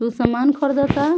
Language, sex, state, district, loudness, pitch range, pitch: Bhojpuri, female, Bihar, Muzaffarpur, -18 LUFS, 240-285 Hz, 280 Hz